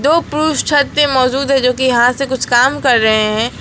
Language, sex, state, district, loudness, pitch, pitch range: Hindi, female, West Bengal, Alipurduar, -13 LUFS, 260 Hz, 245-285 Hz